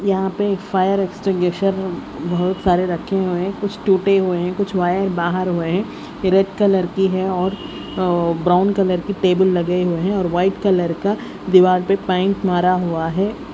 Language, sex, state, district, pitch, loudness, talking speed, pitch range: Hindi, female, Haryana, Rohtak, 185 Hz, -18 LUFS, 185 wpm, 180-195 Hz